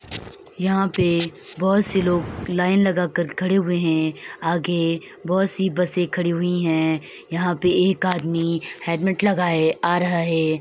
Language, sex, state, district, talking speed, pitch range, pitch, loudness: Hindi, female, Uttar Pradesh, Hamirpur, 145 wpm, 165-185 Hz, 175 Hz, -21 LUFS